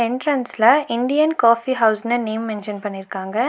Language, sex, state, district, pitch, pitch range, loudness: Tamil, female, Tamil Nadu, Nilgiris, 235 Hz, 215-255 Hz, -19 LUFS